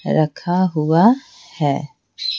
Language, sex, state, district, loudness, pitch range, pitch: Hindi, female, Bihar, Patna, -18 LUFS, 150-185 Hz, 165 Hz